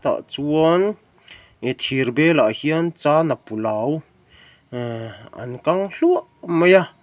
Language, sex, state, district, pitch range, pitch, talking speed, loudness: Mizo, male, Mizoram, Aizawl, 125-170 Hz, 155 Hz, 120 wpm, -20 LUFS